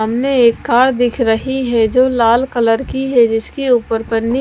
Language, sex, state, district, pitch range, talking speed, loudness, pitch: Hindi, female, Bihar, West Champaran, 225-260 Hz, 190 wpm, -14 LUFS, 240 Hz